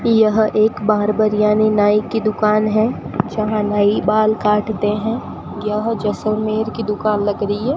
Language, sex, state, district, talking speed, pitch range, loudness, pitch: Hindi, female, Rajasthan, Bikaner, 155 wpm, 210-215 Hz, -17 LUFS, 215 Hz